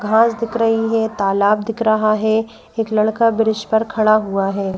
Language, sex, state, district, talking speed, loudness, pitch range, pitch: Hindi, female, Madhya Pradesh, Bhopal, 190 wpm, -17 LUFS, 210-225 Hz, 220 Hz